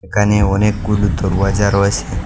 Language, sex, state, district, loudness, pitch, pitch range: Bengali, male, Assam, Hailakandi, -15 LUFS, 100 Hz, 95-105 Hz